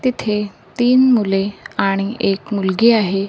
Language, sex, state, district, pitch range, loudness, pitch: Marathi, female, Maharashtra, Gondia, 195-235 Hz, -17 LUFS, 205 Hz